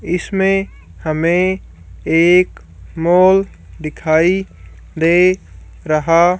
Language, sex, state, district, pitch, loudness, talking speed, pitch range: Hindi, female, Haryana, Charkhi Dadri, 170 Hz, -15 LUFS, 65 wpm, 155-185 Hz